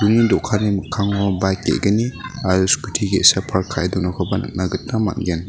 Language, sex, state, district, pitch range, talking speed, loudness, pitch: Garo, male, Meghalaya, West Garo Hills, 95-110 Hz, 140 wpm, -19 LUFS, 100 Hz